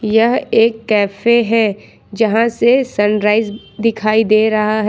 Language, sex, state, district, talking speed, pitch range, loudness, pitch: Hindi, female, Jharkhand, Ranchi, 135 wpm, 215-230 Hz, -14 LUFS, 220 Hz